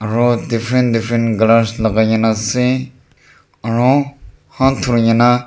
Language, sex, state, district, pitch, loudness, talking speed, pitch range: Nagamese, male, Nagaland, Dimapur, 120 Hz, -15 LUFS, 110 wpm, 115-125 Hz